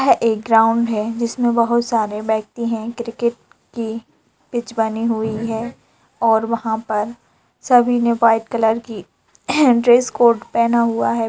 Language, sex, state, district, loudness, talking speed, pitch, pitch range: Hindi, female, Bihar, Gaya, -18 LUFS, 150 wpm, 230 Hz, 220-235 Hz